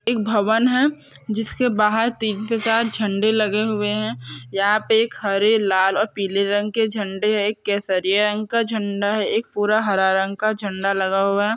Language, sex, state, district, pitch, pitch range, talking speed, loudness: Hindi, female, Chhattisgarh, Sukma, 210 Hz, 200-220 Hz, 195 wpm, -20 LUFS